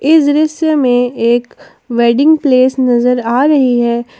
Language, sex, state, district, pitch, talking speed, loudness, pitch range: Hindi, female, Jharkhand, Palamu, 255 Hz, 145 wpm, -11 LUFS, 240-290 Hz